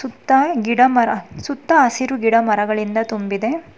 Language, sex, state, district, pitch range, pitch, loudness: Kannada, female, Karnataka, Bangalore, 220-270 Hz, 240 Hz, -17 LUFS